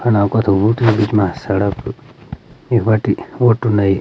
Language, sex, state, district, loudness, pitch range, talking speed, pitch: Garhwali, male, Uttarakhand, Uttarkashi, -15 LUFS, 100-115 Hz, 150 wpm, 105 Hz